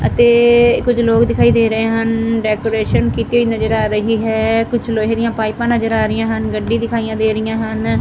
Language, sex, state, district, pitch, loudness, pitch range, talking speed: Punjabi, female, Punjab, Fazilka, 225 Hz, -15 LUFS, 220-230 Hz, 200 wpm